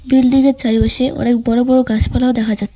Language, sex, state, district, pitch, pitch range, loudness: Bengali, female, West Bengal, Cooch Behar, 250 Hz, 225-260 Hz, -14 LUFS